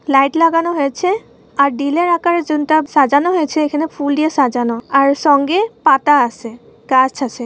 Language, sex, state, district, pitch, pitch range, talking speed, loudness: Bengali, female, West Bengal, Purulia, 290 Hz, 275-330 Hz, 155 wpm, -14 LUFS